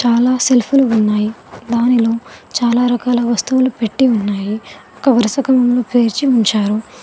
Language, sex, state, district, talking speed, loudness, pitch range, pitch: Telugu, female, Telangana, Mahabubabad, 120 wpm, -15 LUFS, 225-250 Hz, 240 Hz